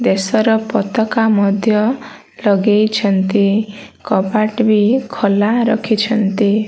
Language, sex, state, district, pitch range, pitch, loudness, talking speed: Odia, female, Odisha, Malkangiri, 205-220 Hz, 215 Hz, -15 LUFS, 65 wpm